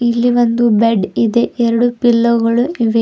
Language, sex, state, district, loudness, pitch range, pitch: Kannada, female, Karnataka, Bidar, -13 LUFS, 230-240 Hz, 235 Hz